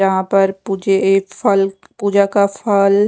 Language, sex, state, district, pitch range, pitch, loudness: Hindi, female, Odisha, Khordha, 195-200 Hz, 195 Hz, -16 LUFS